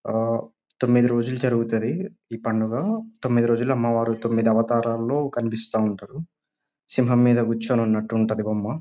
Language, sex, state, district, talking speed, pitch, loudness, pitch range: Telugu, male, Telangana, Nalgonda, 130 wpm, 115 Hz, -23 LUFS, 115-125 Hz